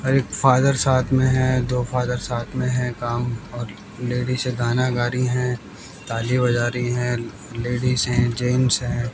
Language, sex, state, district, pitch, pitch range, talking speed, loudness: Hindi, male, Haryana, Jhajjar, 125 Hz, 120-125 Hz, 170 wpm, -21 LUFS